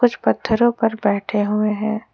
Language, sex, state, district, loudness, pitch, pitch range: Hindi, female, Jharkhand, Ranchi, -19 LUFS, 215 Hz, 210-225 Hz